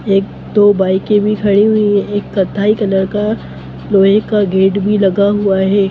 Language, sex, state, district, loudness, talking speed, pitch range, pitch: Hindi, male, Bihar, Gopalganj, -13 LUFS, 175 wpm, 195-205 Hz, 200 Hz